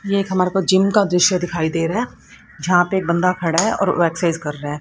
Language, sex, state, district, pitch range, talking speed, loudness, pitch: Hindi, female, Haryana, Rohtak, 165-190 Hz, 275 wpm, -18 LUFS, 180 Hz